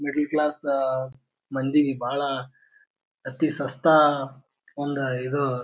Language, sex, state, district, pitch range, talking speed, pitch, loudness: Kannada, male, Karnataka, Bijapur, 130-150 Hz, 95 wpm, 140 Hz, -24 LUFS